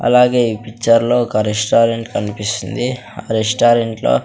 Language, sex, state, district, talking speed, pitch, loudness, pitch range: Telugu, male, Andhra Pradesh, Sri Satya Sai, 125 wpm, 115 Hz, -16 LUFS, 105-120 Hz